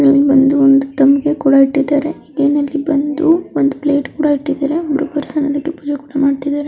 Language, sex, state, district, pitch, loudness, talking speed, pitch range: Kannada, female, Karnataka, Raichur, 290 Hz, -14 LUFS, 115 wpm, 280-295 Hz